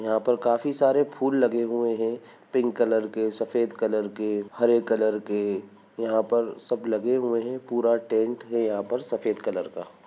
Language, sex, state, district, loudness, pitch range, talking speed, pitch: Bhojpuri, male, Bihar, Saran, -25 LUFS, 110-125 Hz, 185 wpm, 115 Hz